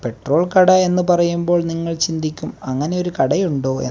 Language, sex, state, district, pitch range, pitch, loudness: Malayalam, male, Kerala, Kasaragod, 145-180 Hz, 170 Hz, -17 LUFS